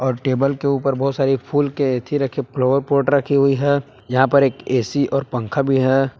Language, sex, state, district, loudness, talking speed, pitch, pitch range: Hindi, male, Jharkhand, Palamu, -18 LUFS, 225 wpm, 135 Hz, 130-140 Hz